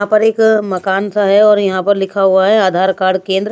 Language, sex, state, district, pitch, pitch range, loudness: Hindi, female, Bihar, Patna, 195 Hz, 190-210 Hz, -12 LUFS